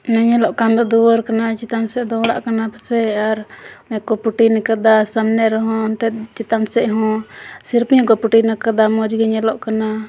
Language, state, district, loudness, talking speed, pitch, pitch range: Santali, Jharkhand, Sahebganj, -16 LUFS, 160 wpm, 225 Hz, 220-230 Hz